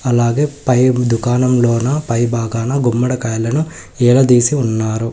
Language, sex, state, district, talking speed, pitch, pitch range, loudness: Telugu, male, Telangana, Hyderabad, 95 wpm, 120 Hz, 115-130 Hz, -15 LUFS